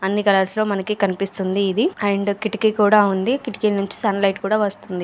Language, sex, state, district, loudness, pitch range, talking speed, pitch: Telugu, female, Andhra Pradesh, Anantapur, -19 LUFS, 195-210 Hz, 190 wpm, 205 Hz